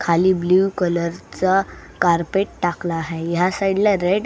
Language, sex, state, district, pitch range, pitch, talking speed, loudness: Marathi, female, Maharashtra, Solapur, 170-195 Hz, 180 Hz, 170 wpm, -19 LUFS